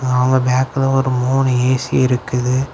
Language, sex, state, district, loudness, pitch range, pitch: Tamil, male, Tamil Nadu, Kanyakumari, -16 LUFS, 125-130 Hz, 130 Hz